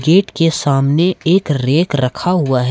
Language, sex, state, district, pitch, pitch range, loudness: Hindi, male, Jharkhand, Ranchi, 160 Hz, 135-180 Hz, -14 LUFS